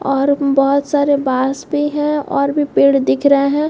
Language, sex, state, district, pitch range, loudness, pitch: Hindi, female, Chhattisgarh, Bastar, 275-290 Hz, -15 LUFS, 280 Hz